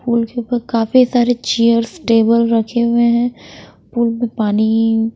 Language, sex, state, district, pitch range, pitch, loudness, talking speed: Hindi, female, Bihar, Patna, 230-240 Hz, 235 Hz, -15 LUFS, 115 wpm